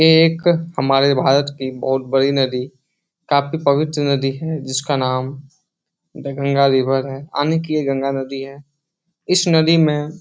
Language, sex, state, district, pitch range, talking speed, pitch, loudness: Hindi, male, Bihar, Jahanabad, 135-160 Hz, 170 wpm, 140 Hz, -18 LUFS